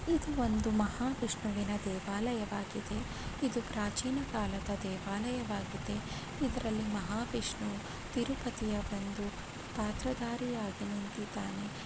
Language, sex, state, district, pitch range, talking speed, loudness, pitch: Kannada, female, Karnataka, Chamarajanagar, 205-245 Hz, 80 wpm, -37 LUFS, 215 Hz